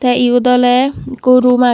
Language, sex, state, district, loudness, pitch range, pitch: Chakma, female, Tripura, Dhalai, -12 LUFS, 245-255 Hz, 250 Hz